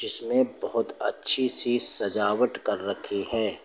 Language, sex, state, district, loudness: Hindi, male, Uttar Pradesh, Lucknow, -21 LUFS